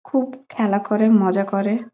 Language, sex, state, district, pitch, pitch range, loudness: Bengali, female, West Bengal, Malda, 215 Hz, 200-240 Hz, -19 LUFS